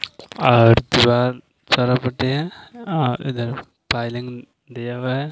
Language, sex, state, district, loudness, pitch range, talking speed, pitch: Hindi, male, Maharashtra, Aurangabad, -19 LUFS, 120-130 Hz, 55 wpm, 125 Hz